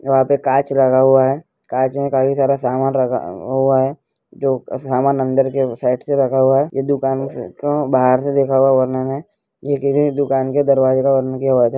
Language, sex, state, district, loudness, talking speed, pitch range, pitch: Hindi, male, West Bengal, Malda, -17 LUFS, 225 wpm, 130-140 Hz, 135 Hz